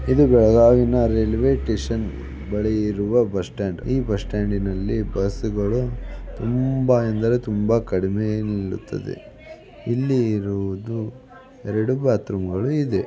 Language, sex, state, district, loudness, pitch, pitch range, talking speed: Kannada, male, Karnataka, Belgaum, -21 LUFS, 110 Hz, 100-125 Hz, 85 wpm